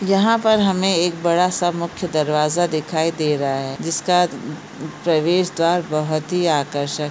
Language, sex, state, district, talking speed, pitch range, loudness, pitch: Hindi, female, Jharkhand, Jamtara, 160 wpm, 155-180 Hz, -19 LUFS, 170 Hz